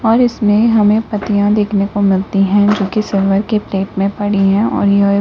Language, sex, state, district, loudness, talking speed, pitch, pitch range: Hindi, female, Uttar Pradesh, Lalitpur, -13 LUFS, 205 wpm, 205 Hz, 195-215 Hz